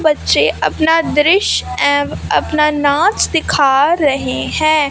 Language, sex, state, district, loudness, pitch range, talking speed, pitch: Hindi, female, Punjab, Fazilka, -13 LUFS, 285-310 Hz, 110 wpm, 295 Hz